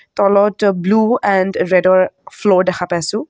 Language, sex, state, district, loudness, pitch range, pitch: Assamese, female, Assam, Kamrup Metropolitan, -14 LUFS, 185-205 Hz, 195 Hz